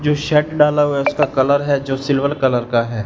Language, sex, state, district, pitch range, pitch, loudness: Hindi, male, Punjab, Fazilka, 135-150 Hz, 140 Hz, -16 LUFS